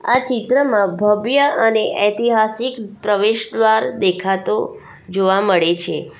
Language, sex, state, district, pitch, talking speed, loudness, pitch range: Gujarati, female, Gujarat, Valsad, 215 Hz, 95 wpm, -17 LUFS, 195-235 Hz